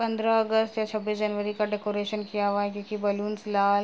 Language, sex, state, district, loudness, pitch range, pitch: Hindi, female, Uttar Pradesh, Jalaun, -27 LUFS, 205-215 Hz, 210 Hz